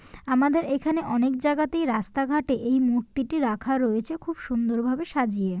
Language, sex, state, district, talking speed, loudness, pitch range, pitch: Bengali, female, West Bengal, Jalpaiguri, 140 wpm, -25 LUFS, 240-300 Hz, 265 Hz